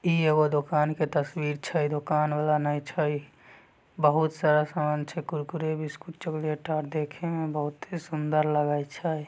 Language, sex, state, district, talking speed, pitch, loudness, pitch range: Magahi, male, Bihar, Samastipur, 150 wpm, 150 Hz, -28 LUFS, 150-160 Hz